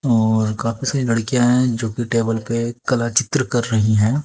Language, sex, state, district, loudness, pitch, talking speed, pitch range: Hindi, male, Haryana, Jhajjar, -19 LUFS, 115 Hz, 185 wpm, 115-125 Hz